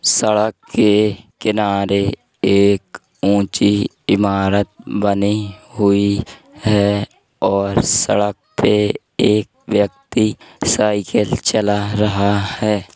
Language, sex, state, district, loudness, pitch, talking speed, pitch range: Hindi, male, Uttar Pradesh, Hamirpur, -17 LUFS, 105 Hz, 85 wpm, 100-105 Hz